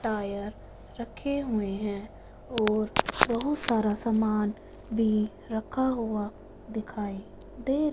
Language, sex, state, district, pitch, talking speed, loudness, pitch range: Hindi, female, Punjab, Fazilka, 220 Hz, 100 wpm, -29 LUFS, 210-235 Hz